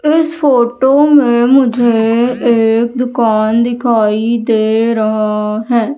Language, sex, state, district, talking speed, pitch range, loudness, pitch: Hindi, female, Madhya Pradesh, Umaria, 100 wpm, 225-250 Hz, -12 LUFS, 235 Hz